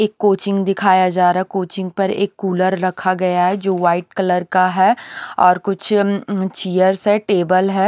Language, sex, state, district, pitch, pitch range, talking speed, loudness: Hindi, female, Haryana, Rohtak, 190 Hz, 185-195 Hz, 175 wpm, -17 LUFS